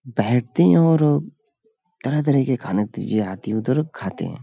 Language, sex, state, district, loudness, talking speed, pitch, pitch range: Hindi, male, Uttar Pradesh, Hamirpur, -20 LUFS, 150 wpm, 130 Hz, 110-150 Hz